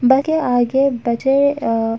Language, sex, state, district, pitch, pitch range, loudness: Hindi, female, Uttar Pradesh, Etah, 260 Hz, 235-275 Hz, -16 LUFS